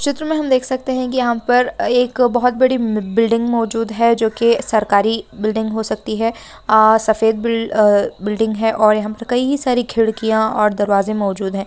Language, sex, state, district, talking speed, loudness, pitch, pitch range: Hindi, female, Bihar, Bhagalpur, 185 wpm, -16 LUFS, 225 Hz, 215-245 Hz